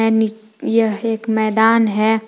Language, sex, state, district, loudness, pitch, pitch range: Hindi, female, Jharkhand, Palamu, -17 LUFS, 220 Hz, 220-225 Hz